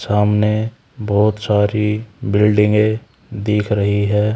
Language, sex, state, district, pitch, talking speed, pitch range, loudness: Hindi, male, Haryana, Charkhi Dadri, 105 Hz, 95 wpm, 105-110 Hz, -17 LUFS